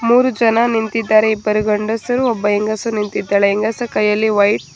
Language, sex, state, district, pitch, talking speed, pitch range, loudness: Kannada, female, Karnataka, Bangalore, 220 Hz, 150 wpm, 210-230 Hz, -16 LUFS